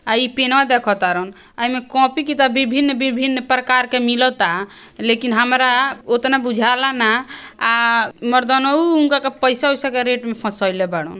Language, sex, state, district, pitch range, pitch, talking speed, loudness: Bhojpuri, female, Bihar, Gopalganj, 230-265 Hz, 255 Hz, 155 wpm, -16 LUFS